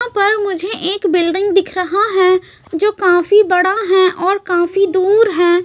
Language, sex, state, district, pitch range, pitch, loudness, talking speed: Hindi, female, Chhattisgarh, Raipur, 360-405 Hz, 380 Hz, -14 LUFS, 170 wpm